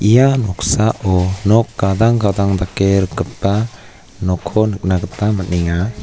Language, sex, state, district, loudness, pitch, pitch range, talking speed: Garo, male, Meghalaya, West Garo Hills, -16 LUFS, 100 Hz, 95-110 Hz, 110 wpm